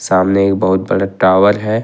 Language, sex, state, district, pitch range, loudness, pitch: Hindi, male, Jharkhand, Ranchi, 95-105 Hz, -13 LUFS, 95 Hz